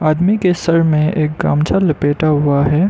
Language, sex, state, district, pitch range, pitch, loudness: Hindi, male, Arunachal Pradesh, Lower Dibang Valley, 150-175 Hz, 155 Hz, -14 LUFS